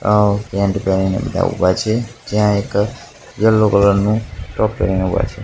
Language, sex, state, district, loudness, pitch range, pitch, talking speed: Gujarati, male, Gujarat, Gandhinagar, -16 LUFS, 95-110 Hz, 100 Hz, 165 wpm